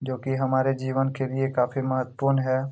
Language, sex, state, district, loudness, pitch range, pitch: Hindi, male, Jharkhand, Jamtara, -25 LUFS, 130-135 Hz, 135 Hz